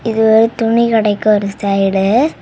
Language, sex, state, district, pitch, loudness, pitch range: Tamil, female, Tamil Nadu, Kanyakumari, 220 Hz, -13 LUFS, 200-225 Hz